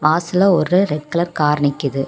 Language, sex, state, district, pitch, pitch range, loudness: Tamil, female, Tamil Nadu, Kanyakumari, 155 Hz, 150-175 Hz, -17 LUFS